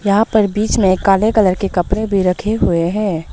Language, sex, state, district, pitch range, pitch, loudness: Hindi, female, Arunachal Pradesh, Lower Dibang Valley, 185-215 Hz, 200 Hz, -15 LUFS